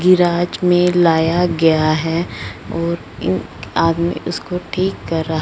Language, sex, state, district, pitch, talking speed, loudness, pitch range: Hindi, female, Punjab, Fazilka, 170 Hz, 120 wpm, -17 LUFS, 165-180 Hz